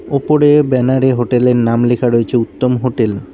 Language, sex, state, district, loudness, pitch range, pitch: Bengali, male, West Bengal, Cooch Behar, -13 LUFS, 120-130 Hz, 125 Hz